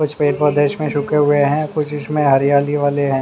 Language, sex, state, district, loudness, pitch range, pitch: Hindi, male, Haryana, Charkhi Dadri, -16 LUFS, 145-150 Hz, 145 Hz